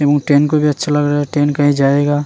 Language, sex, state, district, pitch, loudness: Hindi, male, Uttarakhand, Tehri Garhwal, 145 Hz, -14 LUFS